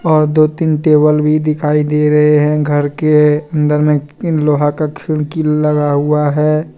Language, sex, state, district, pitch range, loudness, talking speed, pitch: Hindi, male, Jharkhand, Deoghar, 150-155 Hz, -13 LUFS, 170 wpm, 150 Hz